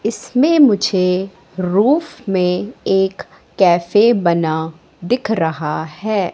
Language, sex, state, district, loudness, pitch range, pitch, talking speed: Hindi, female, Madhya Pradesh, Katni, -16 LUFS, 170-220 Hz, 190 Hz, 95 wpm